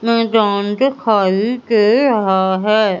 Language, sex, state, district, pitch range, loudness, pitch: Hindi, female, Madhya Pradesh, Umaria, 200-230 Hz, -15 LUFS, 215 Hz